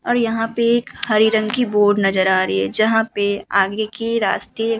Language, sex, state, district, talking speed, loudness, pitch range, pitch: Hindi, female, Uttar Pradesh, Muzaffarnagar, 225 wpm, -18 LUFS, 200-230 Hz, 215 Hz